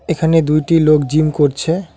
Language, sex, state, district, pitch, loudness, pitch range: Bengali, male, West Bengal, Alipurduar, 155 Hz, -14 LUFS, 150-165 Hz